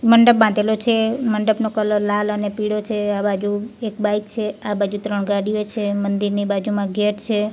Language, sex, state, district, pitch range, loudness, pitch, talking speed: Gujarati, female, Gujarat, Gandhinagar, 205-220 Hz, -20 LUFS, 210 Hz, 185 wpm